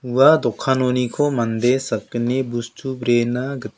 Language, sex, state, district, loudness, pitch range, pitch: Garo, male, Meghalaya, South Garo Hills, -19 LUFS, 120-130 Hz, 125 Hz